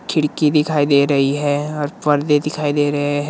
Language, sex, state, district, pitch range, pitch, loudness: Hindi, male, Himachal Pradesh, Shimla, 145-150 Hz, 145 Hz, -17 LUFS